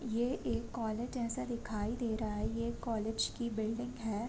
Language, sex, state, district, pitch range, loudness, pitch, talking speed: Hindi, female, Uttar Pradesh, Gorakhpur, 220-240 Hz, -37 LUFS, 230 Hz, 180 wpm